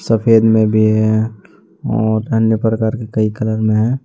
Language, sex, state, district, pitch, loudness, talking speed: Hindi, male, Jharkhand, Deoghar, 110 Hz, -15 LUFS, 180 wpm